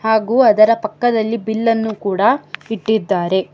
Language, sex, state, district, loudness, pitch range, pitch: Kannada, female, Karnataka, Bangalore, -16 LUFS, 215-230 Hz, 220 Hz